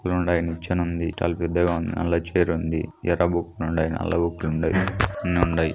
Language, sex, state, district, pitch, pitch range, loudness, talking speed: Telugu, male, Andhra Pradesh, Krishna, 85 Hz, 80-90 Hz, -24 LUFS, 155 wpm